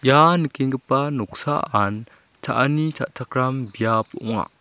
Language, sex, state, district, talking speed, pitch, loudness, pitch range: Garo, male, Meghalaya, South Garo Hills, 90 wpm, 130 Hz, -22 LUFS, 115-140 Hz